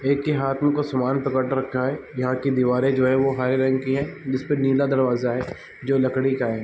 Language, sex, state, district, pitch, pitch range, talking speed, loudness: Hindi, male, Chhattisgarh, Bilaspur, 130 Hz, 130-135 Hz, 245 wpm, -22 LUFS